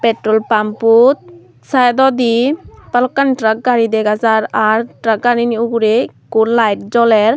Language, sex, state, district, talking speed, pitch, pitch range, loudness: Chakma, female, Tripura, Unakoti, 130 wpm, 230 Hz, 220-245 Hz, -13 LUFS